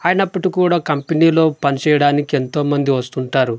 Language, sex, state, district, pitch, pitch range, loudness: Telugu, male, Andhra Pradesh, Manyam, 145 Hz, 140-165 Hz, -16 LUFS